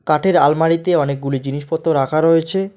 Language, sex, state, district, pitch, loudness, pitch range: Bengali, male, West Bengal, Alipurduar, 160 Hz, -16 LUFS, 140-165 Hz